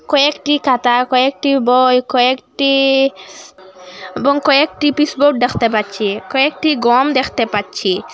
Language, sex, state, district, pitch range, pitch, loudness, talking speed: Bengali, female, Assam, Hailakandi, 230-280 Hz, 260 Hz, -14 LUFS, 105 wpm